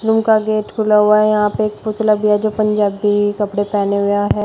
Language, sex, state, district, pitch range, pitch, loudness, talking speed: Hindi, female, Uttar Pradesh, Shamli, 205-215 Hz, 210 Hz, -15 LUFS, 230 wpm